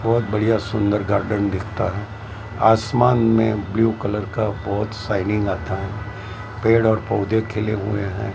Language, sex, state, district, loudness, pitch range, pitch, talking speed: Hindi, male, Maharashtra, Mumbai Suburban, -20 LUFS, 100-110 Hz, 105 Hz, 150 wpm